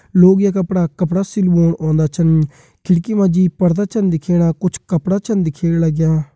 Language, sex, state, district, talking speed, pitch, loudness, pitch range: Kumaoni, male, Uttarakhand, Uttarkashi, 170 wpm, 175 Hz, -15 LUFS, 165-190 Hz